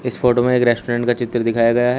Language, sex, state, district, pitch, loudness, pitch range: Hindi, male, Uttar Pradesh, Shamli, 120 Hz, -17 LUFS, 120-125 Hz